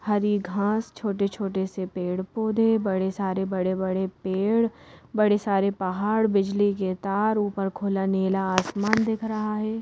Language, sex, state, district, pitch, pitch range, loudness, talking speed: Hindi, female, Madhya Pradesh, Bhopal, 200 Hz, 190-215 Hz, -25 LUFS, 135 wpm